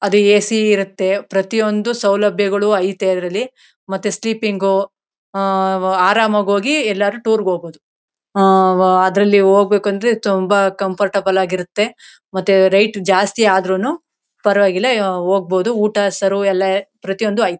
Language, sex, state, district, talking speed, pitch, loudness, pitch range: Kannada, female, Karnataka, Mysore, 110 wpm, 200 Hz, -15 LUFS, 190-210 Hz